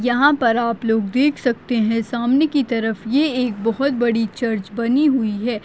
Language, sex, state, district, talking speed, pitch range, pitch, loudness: Hindi, female, Chhattisgarh, Bastar, 190 wpm, 225-265 Hz, 235 Hz, -19 LUFS